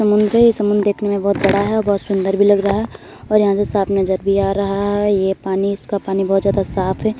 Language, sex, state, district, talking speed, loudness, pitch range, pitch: Hindi, female, Uttar Pradesh, Hamirpur, 265 wpm, -17 LUFS, 195-205 Hz, 200 Hz